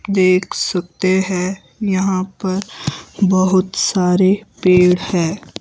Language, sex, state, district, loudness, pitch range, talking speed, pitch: Hindi, male, Himachal Pradesh, Shimla, -17 LUFS, 180-190 Hz, 95 wpm, 185 Hz